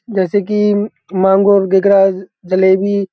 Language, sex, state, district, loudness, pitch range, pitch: Hindi, male, Uttar Pradesh, Hamirpur, -13 LUFS, 190-205 Hz, 195 Hz